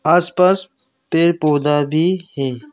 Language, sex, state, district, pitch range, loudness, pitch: Hindi, male, Arunachal Pradesh, Lower Dibang Valley, 150-185 Hz, -16 LUFS, 165 Hz